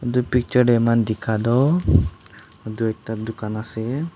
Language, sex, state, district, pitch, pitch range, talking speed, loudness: Nagamese, male, Nagaland, Dimapur, 115 Hz, 110-125 Hz, 145 wpm, -21 LUFS